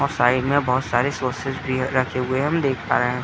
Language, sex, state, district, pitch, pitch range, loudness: Hindi, male, Uttar Pradesh, Etah, 130 Hz, 125-135 Hz, -21 LUFS